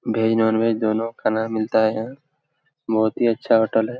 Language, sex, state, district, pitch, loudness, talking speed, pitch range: Hindi, male, Jharkhand, Jamtara, 110 Hz, -20 LUFS, 195 wpm, 110-115 Hz